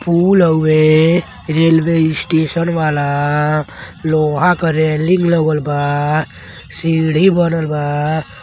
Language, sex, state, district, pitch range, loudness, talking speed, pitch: Bhojpuri, male, Uttar Pradesh, Deoria, 150-165 Hz, -14 LUFS, 90 wpm, 160 Hz